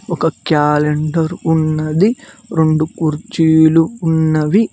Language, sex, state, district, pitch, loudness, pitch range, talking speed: Telugu, male, Telangana, Mahabubabad, 160 Hz, -15 LUFS, 155-165 Hz, 75 wpm